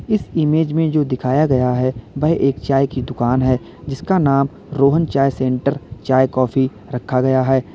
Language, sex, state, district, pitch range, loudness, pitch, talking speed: Hindi, male, Uttar Pradesh, Lalitpur, 130-150 Hz, -17 LUFS, 135 Hz, 180 wpm